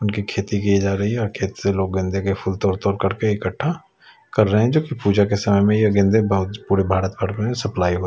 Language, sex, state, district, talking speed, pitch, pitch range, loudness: Hindi, male, Chhattisgarh, Raipur, 270 wpm, 100 Hz, 95-105 Hz, -20 LUFS